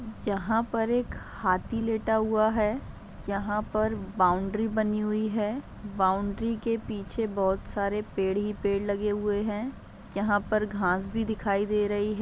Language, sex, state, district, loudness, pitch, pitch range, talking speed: Hindi, female, Bihar, Jahanabad, -28 LUFS, 210 Hz, 200-220 Hz, 155 wpm